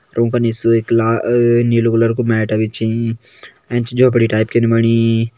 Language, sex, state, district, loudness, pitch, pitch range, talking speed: Kumaoni, male, Uttarakhand, Tehri Garhwal, -15 LUFS, 115 Hz, 115-120 Hz, 155 wpm